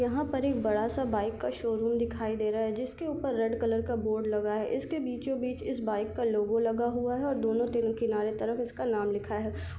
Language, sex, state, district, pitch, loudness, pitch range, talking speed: Hindi, female, Chhattisgarh, Sarguja, 230 Hz, -31 LUFS, 215-245 Hz, 235 wpm